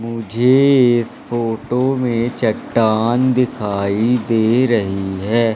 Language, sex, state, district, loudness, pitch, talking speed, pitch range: Hindi, male, Madhya Pradesh, Katni, -16 LUFS, 115 Hz, 95 wpm, 110-125 Hz